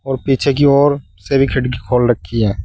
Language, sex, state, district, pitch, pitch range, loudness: Hindi, male, Uttar Pradesh, Saharanpur, 130 Hz, 115-140 Hz, -15 LUFS